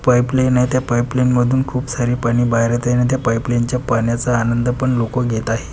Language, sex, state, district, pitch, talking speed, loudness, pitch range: Marathi, male, Maharashtra, Pune, 120 Hz, 220 wpm, -17 LUFS, 120-125 Hz